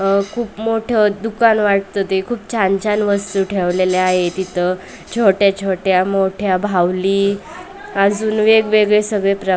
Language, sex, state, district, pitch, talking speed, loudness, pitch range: Marathi, female, Maharashtra, Aurangabad, 200 Hz, 140 wpm, -16 LUFS, 190-215 Hz